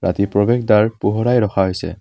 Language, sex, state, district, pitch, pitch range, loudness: Assamese, male, Assam, Kamrup Metropolitan, 100 Hz, 95-115 Hz, -16 LUFS